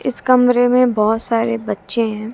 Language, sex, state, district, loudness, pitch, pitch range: Hindi, female, Haryana, Jhajjar, -16 LUFS, 230 Hz, 220-245 Hz